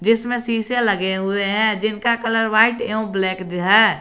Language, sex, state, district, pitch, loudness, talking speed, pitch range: Hindi, male, Jharkhand, Garhwa, 220 Hz, -18 LUFS, 165 wpm, 200-230 Hz